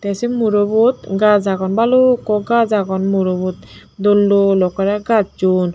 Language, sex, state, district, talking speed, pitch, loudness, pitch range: Chakma, female, Tripura, Dhalai, 135 wpm, 205 Hz, -15 LUFS, 195-220 Hz